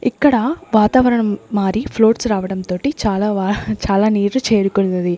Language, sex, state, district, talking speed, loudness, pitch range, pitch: Telugu, female, Andhra Pradesh, Sri Satya Sai, 115 wpm, -16 LUFS, 195-225 Hz, 210 Hz